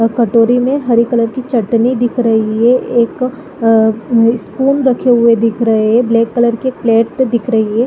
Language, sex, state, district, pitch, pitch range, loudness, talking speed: Hindi, female, Chhattisgarh, Bilaspur, 235 Hz, 230-250 Hz, -12 LUFS, 200 wpm